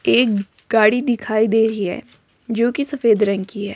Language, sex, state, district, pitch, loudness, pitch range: Hindi, female, Himachal Pradesh, Shimla, 220 Hz, -18 LUFS, 205-235 Hz